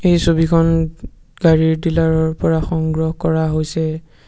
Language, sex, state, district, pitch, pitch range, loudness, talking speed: Assamese, male, Assam, Sonitpur, 160 Hz, 160-165 Hz, -17 LUFS, 125 wpm